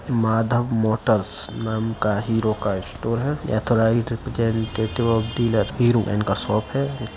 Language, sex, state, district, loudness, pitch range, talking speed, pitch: Hindi, male, Uttar Pradesh, Jyotiba Phule Nagar, -22 LUFS, 110-120 Hz, 125 wpm, 115 Hz